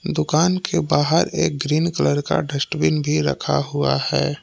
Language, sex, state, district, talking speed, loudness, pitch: Hindi, male, Jharkhand, Palamu, 165 wpm, -20 LUFS, 140 Hz